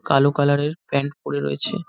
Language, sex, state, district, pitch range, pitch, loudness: Bengali, male, West Bengal, North 24 Parganas, 105-145 Hz, 140 Hz, -21 LUFS